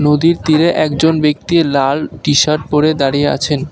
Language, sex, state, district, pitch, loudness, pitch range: Bengali, male, West Bengal, Alipurduar, 150 Hz, -13 LUFS, 145-160 Hz